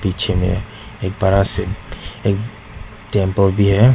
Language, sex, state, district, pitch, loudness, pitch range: Hindi, male, Nagaland, Dimapur, 100 Hz, -18 LUFS, 95-105 Hz